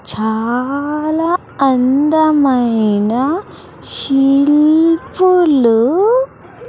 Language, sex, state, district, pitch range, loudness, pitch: Telugu, female, Andhra Pradesh, Sri Satya Sai, 250-325 Hz, -13 LUFS, 285 Hz